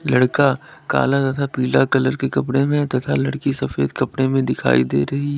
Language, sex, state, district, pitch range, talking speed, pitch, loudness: Hindi, male, Uttar Pradesh, Lalitpur, 120-140 Hz, 190 wpm, 130 Hz, -19 LUFS